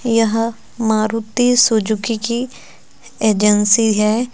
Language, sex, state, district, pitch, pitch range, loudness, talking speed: Hindi, female, Uttar Pradesh, Lucknow, 225 Hz, 215-235 Hz, -16 LUFS, 85 wpm